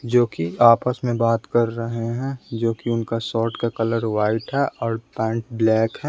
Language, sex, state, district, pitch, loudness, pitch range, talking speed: Hindi, male, Bihar, West Champaran, 115 Hz, -22 LUFS, 115-120 Hz, 195 wpm